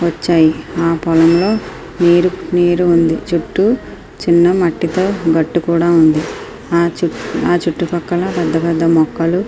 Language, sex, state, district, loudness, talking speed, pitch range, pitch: Telugu, female, Andhra Pradesh, Srikakulam, -14 LUFS, 105 wpm, 165-175 Hz, 170 Hz